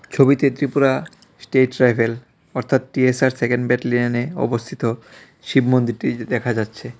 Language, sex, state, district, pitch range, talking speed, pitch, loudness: Bengali, male, Tripura, West Tripura, 120-130 Hz, 110 wpm, 125 Hz, -19 LUFS